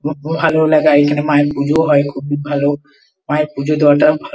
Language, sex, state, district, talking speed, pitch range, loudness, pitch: Bengali, female, West Bengal, Kolkata, 165 wpm, 145-155 Hz, -14 LUFS, 150 Hz